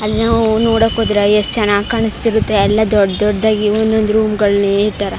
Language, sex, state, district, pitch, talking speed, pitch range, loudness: Kannada, female, Karnataka, Chamarajanagar, 215 Hz, 185 wpm, 205-220 Hz, -14 LUFS